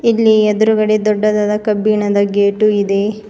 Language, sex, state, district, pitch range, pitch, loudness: Kannada, female, Karnataka, Bidar, 205-215 Hz, 215 Hz, -13 LUFS